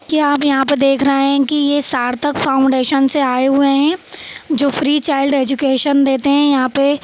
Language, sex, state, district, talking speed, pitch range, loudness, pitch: Hindi, female, Bihar, Saharsa, 180 wpm, 270-290 Hz, -14 LUFS, 275 Hz